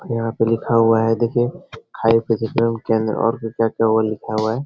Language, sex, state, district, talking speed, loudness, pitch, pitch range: Hindi, male, Bihar, Jahanabad, 195 wpm, -19 LUFS, 115 Hz, 110-115 Hz